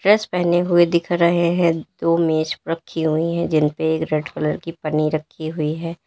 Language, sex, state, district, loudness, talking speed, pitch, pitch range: Hindi, female, Uttar Pradesh, Lalitpur, -20 LUFS, 205 wpm, 165 Hz, 155-170 Hz